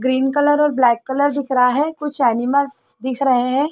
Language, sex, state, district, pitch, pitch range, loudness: Hindi, female, Uttar Pradesh, Varanasi, 270 Hz, 250-285 Hz, -17 LUFS